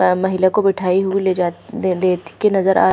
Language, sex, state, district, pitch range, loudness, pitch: Hindi, female, Chhattisgarh, Raipur, 180-195 Hz, -17 LUFS, 185 Hz